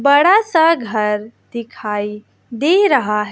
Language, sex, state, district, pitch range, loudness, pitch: Hindi, female, Bihar, West Champaran, 210-320 Hz, -15 LUFS, 235 Hz